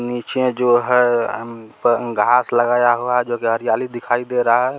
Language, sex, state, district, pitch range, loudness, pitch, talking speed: Maithili, male, Bihar, Supaul, 120-125 Hz, -17 LUFS, 120 Hz, 190 wpm